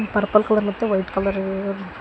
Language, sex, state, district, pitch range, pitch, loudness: Kannada, female, Karnataka, Koppal, 195-210 Hz, 200 Hz, -21 LUFS